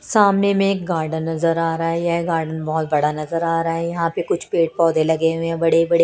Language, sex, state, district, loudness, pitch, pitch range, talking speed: Hindi, female, Punjab, Kapurthala, -19 LUFS, 165 Hz, 160-170 Hz, 240 wpm